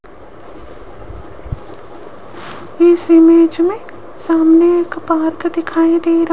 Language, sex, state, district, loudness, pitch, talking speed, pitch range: Hindi, female, Rajasthan, Jaipur, -12 LUFS, 335 Hz, 95 wpm, 330-345 Hz